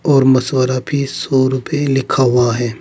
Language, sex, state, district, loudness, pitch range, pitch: Hindi, male, Uttar Pradesh, Saharanpur, -15 LUFS, 125-140 Hz, 130 Hz